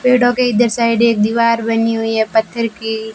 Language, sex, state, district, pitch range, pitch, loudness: Hindi, female, Rajasthan, Bikaner, 220-235 Hz, 230 Hz, -15 LUFS